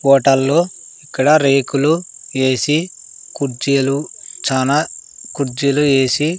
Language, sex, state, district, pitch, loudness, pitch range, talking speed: Telugu, male, Andhra Pradesh, Sri Satya Sai, 140 Hz, -16 LUFS, 135-150 Hz, 75 wpm